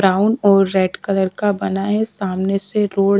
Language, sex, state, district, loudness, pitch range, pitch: Hindi, female, Bihar, Patna, -18 LUFS, 190-205 Hz, 195 Hz